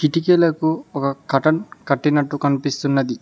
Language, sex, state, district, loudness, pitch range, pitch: Telugu, male, Telangana, Mahabubabad, -19 LUFS, 140-160 Hz, 145 Hz